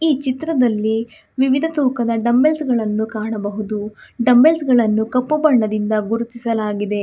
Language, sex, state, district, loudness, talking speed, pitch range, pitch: Kannada, female, Karnataka, Bangalore, -18 LUFS, 100 wpm, 215-265 Hz, 235 Hz